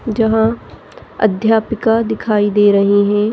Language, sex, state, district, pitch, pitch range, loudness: Hindi, female, Chhattisgarh, Rajnandgaon, 220 Hz, 205-225 Hz, -14 LUFS